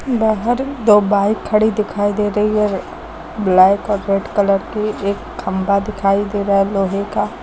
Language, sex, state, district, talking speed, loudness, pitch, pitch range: Hindi, female, Uttar Pradesh, Lucknow, 170 wpm, -16 LUFS, 205 Hz, 200-215 Hz